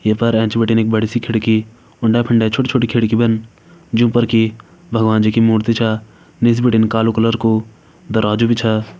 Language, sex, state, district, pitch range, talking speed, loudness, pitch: Hindi, male, Uttarakhand, Tehri Garhwal, 110-120 Hz, 205 wpm, -15 LUFS, 115 Hz